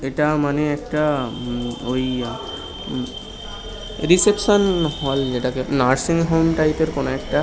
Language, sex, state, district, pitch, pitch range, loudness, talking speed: Bengali, male, West Bengal, Kolkata, 145 Hz, 130-160 Hz, -20 LUFS, 120 wpm